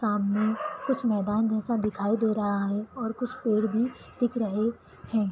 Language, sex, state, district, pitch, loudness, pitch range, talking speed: Hindi, female, Jharkhand, Sahebganj, 220 Hz, -28 LUFS, 210-235 Hz, 170 wpm